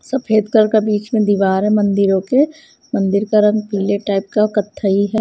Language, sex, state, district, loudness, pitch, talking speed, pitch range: Hindi, female, Punjab, Kapurthala, -16 LUFS, 210 Hz, 195 wpm, 200-215 Hz